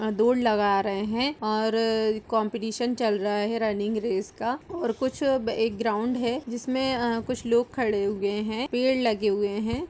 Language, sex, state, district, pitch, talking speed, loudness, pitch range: Hindi, female, Bihar, Gaya, 225 Hz, 175 wpm, -26 LUFS, 215-245 Hz